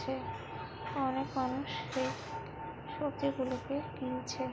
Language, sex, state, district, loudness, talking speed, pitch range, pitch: Bengali, female, West Bengal, Kolkata, -37 LUFS, 65 wpm, 130-150 Hz, 130 Hz